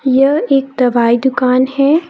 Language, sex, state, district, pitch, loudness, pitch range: Hindi, female, Jharkhand, Palamu, 265 Hz, -13 LUFS, 250-275 Hz